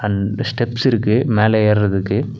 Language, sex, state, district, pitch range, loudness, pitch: Tamil, male, Tamil Nadu, Nilgiris, 105-120 Hz, -17 LUFS, 110 Hz